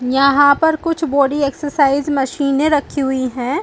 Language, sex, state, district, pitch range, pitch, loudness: Hindi, female, Chhattisgarh, Balrampur, 275-295 Hz, 280 Hz, -16 LUFS